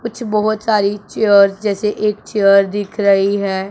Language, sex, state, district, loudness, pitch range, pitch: Hindi, male, Punjab, Pathankot, -15 LUFS, 200-215 Hz, 205 Hz